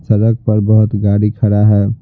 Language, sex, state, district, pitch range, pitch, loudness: Hindi, male, Bihar, Patna, 105-110 Hz, 105 Hz, -12 LUFS